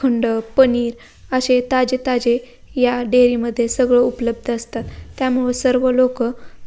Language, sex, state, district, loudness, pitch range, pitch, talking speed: Marathi, female, Maharashtra, Pune, -18 LUFS, 240-255 Hz, 245 Hz, 125 wpm